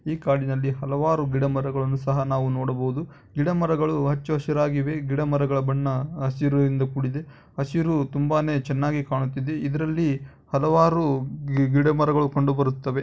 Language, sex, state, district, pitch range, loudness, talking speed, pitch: Kannada, male, Karnataka, Bijapur, 135-150 Hz, -24 LUFS, 105 wpm, 140 Hz